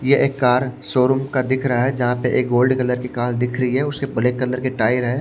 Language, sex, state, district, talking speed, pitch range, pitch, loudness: Hindi, male, Maharashtra, Washim, 275 wpm, 125-130 Hz, 125 Hz, -19 LUFS